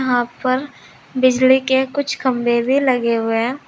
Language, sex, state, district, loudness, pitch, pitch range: Hindi, female, Uttar Pradesh, Saharanpur, -17 LUFS, 255 Hz, 240-265 Hz